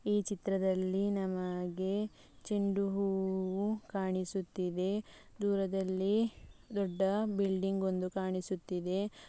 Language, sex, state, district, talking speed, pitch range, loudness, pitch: Kannada, female, Karnataka, Mysore, 70 wpm, 185-200 Hz, -35 LUFS, 195 Hz